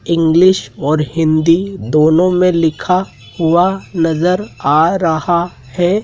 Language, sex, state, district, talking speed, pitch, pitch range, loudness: Hindi, male, Madhya Pradesh, Dhar, 110 wpm, 170 Hz, 160-180 Hz, -13 LUFS